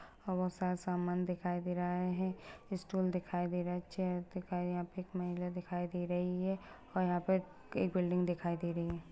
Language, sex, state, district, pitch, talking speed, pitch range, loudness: Hindi, female, Goa, North and South Goa, 180 Hz, 195 wpm, 175-185 Hz, -38 LUFS